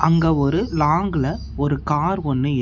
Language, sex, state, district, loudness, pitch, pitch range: Tamil, male, Tamil Nadu, Namakkal, -20 LUFS, 150 Hz, 140-160 Hz